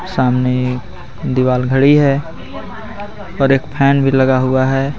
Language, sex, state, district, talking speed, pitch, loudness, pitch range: Hindi, male, Jharkhand, Garhwa, 145 wpm, 135 Hz, -14 LUFS, 130-140 Hz